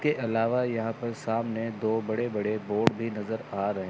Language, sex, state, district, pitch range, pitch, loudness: Hindi, male, Chandigarh, Chandigarh, 110-115 Hz, 115 Hz, -29 LUFS